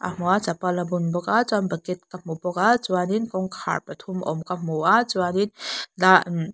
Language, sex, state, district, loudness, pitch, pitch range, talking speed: Mizo, female, Mizoram, Aizawl, -23 LUFS, 180 Hz, 175-200 Hz, 210 wpm